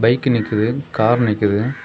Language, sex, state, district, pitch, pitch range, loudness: Tamil, male, Tamil Nadu, Kanyakumari, 115 Hz, 105-125 Hz, -17 LUFS